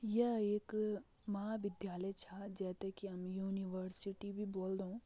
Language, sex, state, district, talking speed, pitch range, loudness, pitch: Garhwali, female, Uttarakhand, Tehri Garhwal, 130 wpm, 190-210 Hz, -42 LUFS, 200 Hz